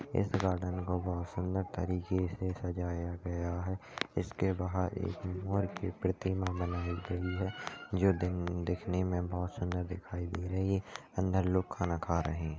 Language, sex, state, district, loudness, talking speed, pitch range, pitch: Hindi, male, Chhattisgarh, Kabirdham, -35 LUFS, 165 wpm, 90-95 Hz, 90 Hz